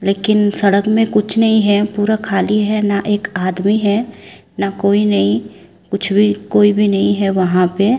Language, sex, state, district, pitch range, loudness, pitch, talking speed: Hindi, female, Chhattisgarh, Raipur, 185-210 Hz, -15 LUFS, 205 Hz, 180 wpm